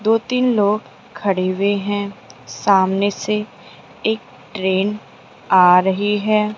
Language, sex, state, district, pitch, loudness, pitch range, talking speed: Hindi, female, Rajasthan, Jaipur, 200 Hz, -18 LUFS, 190-210 Hz, 120 wpm